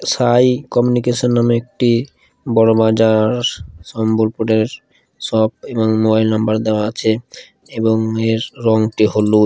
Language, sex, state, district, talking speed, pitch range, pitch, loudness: Bengali, male, Odisha, Khordha, 115 wpm, 110-120 Hz, 110 Hz, -16 LUFS